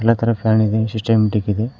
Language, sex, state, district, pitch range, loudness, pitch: Kannada, male, Karnataka, Koppal, 110-115 Hz, -17 LUFS, 110 Hz